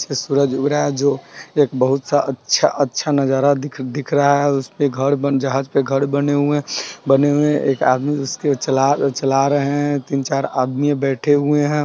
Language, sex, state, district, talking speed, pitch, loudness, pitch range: Hindi, male, Bihar, Sitamarhi, 190 wpm, 140 Hz, -18 LUFS, 135-145 Hz